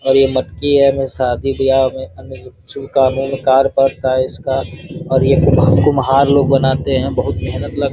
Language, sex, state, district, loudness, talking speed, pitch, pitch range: Hindi, male, Uttar Pradesh, Gorakhpur, -14 LUFS, 180 wpm, 135 Hz, 130-135 Hz